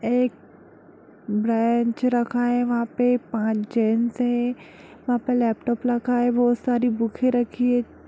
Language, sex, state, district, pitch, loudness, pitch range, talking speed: Hindi, female, Bihar, Darbhanga, 240 Hz, -23 LUFS, 235-245 Hz, 140 wpm